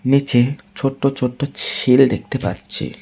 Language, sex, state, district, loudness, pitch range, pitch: Bengali, male, West Bengal, Cooch Behar, -17 LUFS, 125-140 Hz, 135 Hz